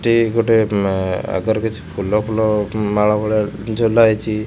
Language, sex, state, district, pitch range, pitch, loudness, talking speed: Odia, male, Odisha, Khordha, 105-110 Hz, 110 Hz, -17 LUFS, 135 wpm